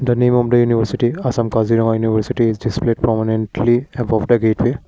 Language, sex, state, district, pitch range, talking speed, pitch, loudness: English, male, Assam, Kamrup Metropolitan, 110-120 Hz, 170 wpm, 115 Hz, -17 LUFS